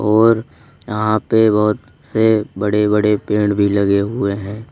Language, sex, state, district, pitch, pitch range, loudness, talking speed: Hindi, male, Uttar Pradesh, Lalitpur, 105 Hz, 105-110 Hz, -16 LUFS, 150 wpm